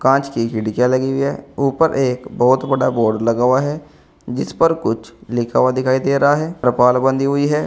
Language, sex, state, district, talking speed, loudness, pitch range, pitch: Hindi, male, Uttar Pradesh, Saharanpur, 210 wpm, -17 LUFS, 120-140 Hz, 130 Hz